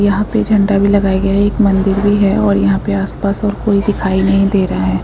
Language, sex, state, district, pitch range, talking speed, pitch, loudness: Hindi, female, Chhattisgarh, Sukma, 195-205 Hz, 260 wpm, 200 Hz, -13 LUFS